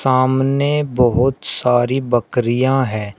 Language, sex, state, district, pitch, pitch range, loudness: Hindi, male, Uttar Pradesh, Shamli, 130 Hz, 120-135 Hz, -17 LUFS